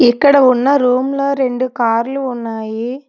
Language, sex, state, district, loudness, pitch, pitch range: Telugu, female, Telangana, Hyderabad, -15 LUFS, 255 Hz, 240-275 Hz